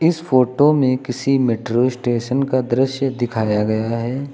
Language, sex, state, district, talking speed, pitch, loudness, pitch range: Hindi, male, Uttar Pradesh, Lucknow, 150 wpm, 130 Hz, -18 LUFS, 120-135 Hz